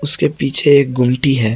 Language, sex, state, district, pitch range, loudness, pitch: Hindi, male, Jharkhand, Garhwa, 125-140 Hz, -13 LUFS, 135 Hz